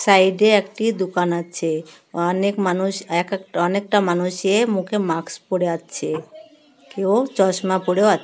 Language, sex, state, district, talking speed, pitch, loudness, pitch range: Bengali, female, West Bengal, Kolkata, 140 wpm, 190 Hz, -20 LUFS, 175-205 Hz